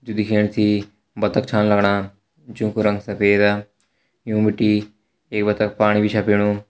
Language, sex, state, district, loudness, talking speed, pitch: Hindi, male, Uttarakhand, Tehri Garhwal, -19 LUFS, 150 wpm, 105 Hz